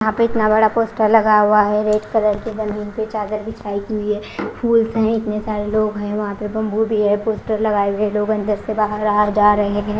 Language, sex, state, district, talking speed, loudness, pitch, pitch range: Hindi, female, Punjab, Kapurthala, 245 wpm, -18 LUFS, 215 Hz, 210-220 Hz